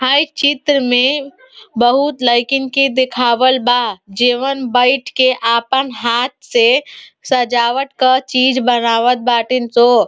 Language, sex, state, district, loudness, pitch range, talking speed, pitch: Bhojpuri, female, Uttar Pradesh, Ghazipur, -14 LUFS, 245-270 Hz, 120 wpm, 255 Hz